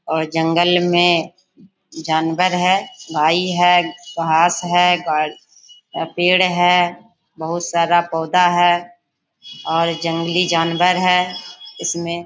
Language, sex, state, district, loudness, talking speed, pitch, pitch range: Hindi, female, Bihar, Bhagalpur, -17 LUFS, 100 wpm, 175 Hz, 165-180 Hz